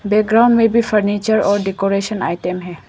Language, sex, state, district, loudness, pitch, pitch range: Hindi, female, Arunachal Pradesh, Lower Dibang Valley, -16 LUFS, 205 Hz, 195-220 Hz